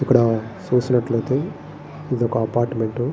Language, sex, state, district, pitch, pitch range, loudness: Telugu, male, Andhra Pradesh, Srikakulam, 120 Hz, 115-130 Hz, -21 LUFS